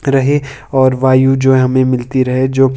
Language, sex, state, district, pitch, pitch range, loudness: Hindi, male, Himachal Pradesh, Shimla, 130 Hz, 130-135 Hz, -12 LUFS